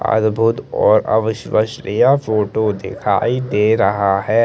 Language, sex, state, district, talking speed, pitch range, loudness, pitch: Hindi, male, Chandigarh, Chandigarh, 150 wpm, 105-115 Hz, -16 LUFS, 110 Hz